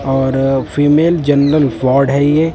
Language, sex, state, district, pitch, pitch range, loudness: Hindi, male, Punjab, Kapurthala, 140 Hz, 135-150 Hz, -13 LUFS